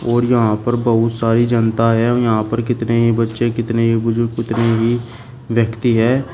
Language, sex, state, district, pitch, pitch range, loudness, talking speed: Hindi, male, Uttar Pradesh, Shamli, 115 Hz, 115-120 Hz, -16 LUFS, 190 wpm